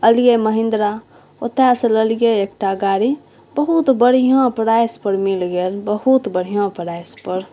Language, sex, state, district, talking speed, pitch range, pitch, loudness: Maithili, female, Bihar, Saharsa, 135 wpm, 195-245 Hz, 220 Hz, -17 LUFS